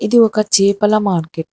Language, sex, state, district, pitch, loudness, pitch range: Telugu, female, Telangana, Hyderabad, 210 Hz, -14 LUFS, 190-215 Hz